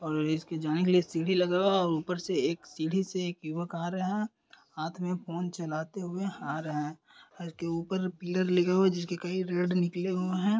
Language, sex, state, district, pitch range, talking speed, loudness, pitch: Hindi, male, Uttar Pradesh, Deoria, 165-185 Hz, 225 wpm, -31 LUFS, 175 Hz